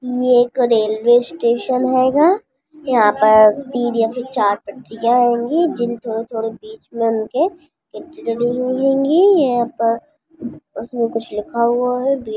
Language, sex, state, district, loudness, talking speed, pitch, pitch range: Hindi, female, Bihar, Jamui, -17 LUFS, 130 wpm, 240 Hz, 225-265 Hz